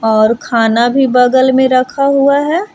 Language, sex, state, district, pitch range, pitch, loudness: Hindi, female, Jharkhand, Palamu, 235-275 Hz, 260 Hz, -11 LUFS